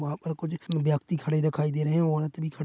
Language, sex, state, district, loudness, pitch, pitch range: Hindi, male, Chhattisgarh, Korba, -28 LUFS, 155 Hz, 150-160 Hz